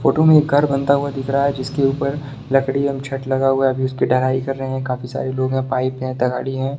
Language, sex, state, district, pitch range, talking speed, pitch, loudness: Hindi, male, Bihar, Sitamarhi, 130-140 Hz, 285 wpm, 135 Hz, -19 LUFS